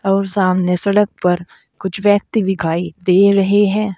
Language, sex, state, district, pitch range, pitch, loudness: Hindi, female, Uttar Pradesh, Saharanpur, 180-205 Hz, 195 Hz, -15 LUFS